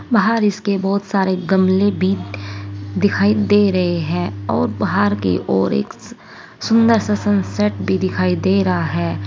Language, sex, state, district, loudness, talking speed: Hindi, female, Uttar Pradesh, Saharanpur, -17 LUFS, 150 wpm